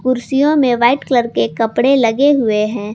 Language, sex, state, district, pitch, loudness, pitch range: Hindi, female, Jharkhand, Garhwa, 240 Hz, -14 LUFS, 220-270 Hz